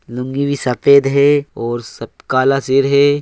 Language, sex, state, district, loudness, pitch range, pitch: Hindi, male, Bihar, Begusarai, -15 LUFS, 125-140 Hz, 135 Hz